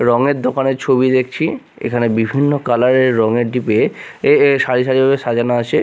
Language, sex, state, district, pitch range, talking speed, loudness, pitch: Bengali, male, Odisha, Nuapada, 120-135 Hz, 175 wpm, -15 LUFS, 125 Hz